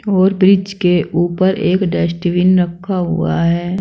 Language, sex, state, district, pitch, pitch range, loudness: Hindi, female, Uttar Pradesh, Saharanpur, 180 Hz, 175-190 Hz, -15 LUFS